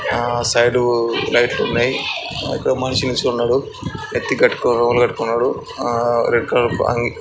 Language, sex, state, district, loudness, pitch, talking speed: Telugu, male, Andhra Pradesh, Srikakulam, -18 LUFS, 120 Hz, 150 wpm